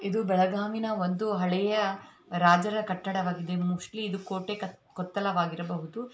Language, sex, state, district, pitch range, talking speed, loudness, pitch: Kannada, female, Karnataka, Belgaum, 180-210 Hz, 95 wpm, -29 LUFS, 190 Hz